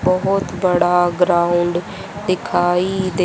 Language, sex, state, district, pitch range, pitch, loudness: Hindi, male, Haryana, Rohtak, 175-190 Hz, 180 Hz, -17 LUFS